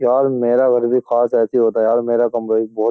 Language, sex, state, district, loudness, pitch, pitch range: Hindi, male, Uttar Pradesh, Jyotiba Phule Nagar, -16 LUFS, 120 Hz, 115-125 Hz